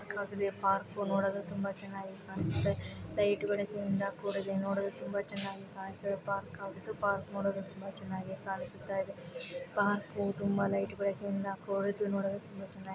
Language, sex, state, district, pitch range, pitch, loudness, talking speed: Kannada, female, Karnataka, Raichur, 195-200 Hz, 195 Hz, -36 LUFS, 145 wpm